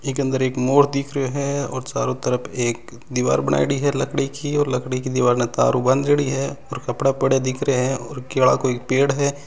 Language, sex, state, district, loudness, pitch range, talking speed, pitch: Hindi, male, Rajasthan, Nagaur, -21 LUFS, 125-140 Hz, 230 wpm, 130 Hz